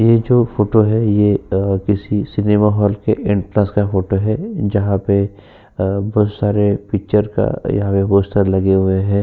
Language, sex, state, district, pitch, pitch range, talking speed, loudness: Hindi, male, Uttar Pradesh, Jyotiba Phule Nagar, 100 Hz, 100-105 Hz, 170 wpm, -16 LUFS